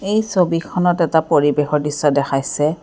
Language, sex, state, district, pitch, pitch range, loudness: Assamese, female, Assam, Kamrup Metropolitan, 160 Hz, 145-175 Hz, -17 LUFS